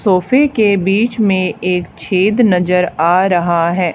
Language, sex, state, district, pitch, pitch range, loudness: Hindi, female, Haryana, Charkhi Dadri, 185 Hz, 175-210 Hz, -13 LUFS